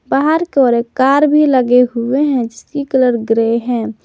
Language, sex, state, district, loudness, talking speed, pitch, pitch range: Hindi, female, Jharkhand, Garhwa, -13 LUFS, 195 wpm, 255 Hz, 235-285 Hz